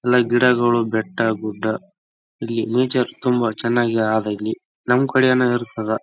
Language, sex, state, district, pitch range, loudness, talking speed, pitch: Kannada, male, Karnataka, Raichur, 110-125 Hz, -19 LUFS, 210 wpm, 120 Hz